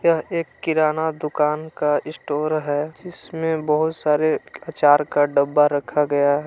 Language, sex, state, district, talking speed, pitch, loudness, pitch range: Hindi, male, Jharkhand, Palamu, 140 wpm, 155 Hz, -21 LUFS, 145-160 Hz